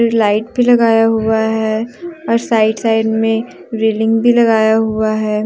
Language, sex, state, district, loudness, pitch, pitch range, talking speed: Hindi, female, Jharkhand, Deoghar, -14 LUFS, 225 Hz, 220-230 Hz, 155 wpm